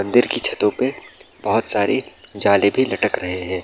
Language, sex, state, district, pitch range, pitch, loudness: Hindi, male, Bihar, Saharsa, 90-105 Hz, 100 Hz, -19 LUFS